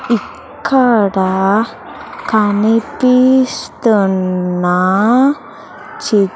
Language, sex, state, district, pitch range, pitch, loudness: Telugu, female, Andhra Pradesh, Sri Satya Sai, 190-250 Hz, 220 Hz, -13 LUFS